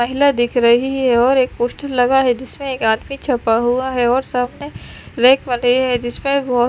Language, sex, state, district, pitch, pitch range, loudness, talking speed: Hindi, female, Chandigarh, Chandigarh, 250 Hz, 240-265 Hz, -16 LUFS, 200 wpm